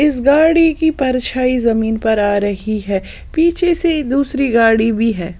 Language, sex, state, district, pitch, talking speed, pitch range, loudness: Hindi, female, Odisha, Sambalpur, 255 Hz, 165 wpm, 220-300 Hz, -15 LUFS